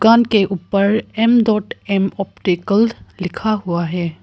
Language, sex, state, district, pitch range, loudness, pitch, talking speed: Hindi, female, Arunachal Pradesh, Papum Pare, 185-220 Hz, -17 LUFS, 200 Hz, 140 wpm